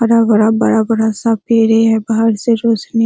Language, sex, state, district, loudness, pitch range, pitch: Hindi, female, Bihar, Araria, -13 LUFS, 220-230 Hz, 225 Hz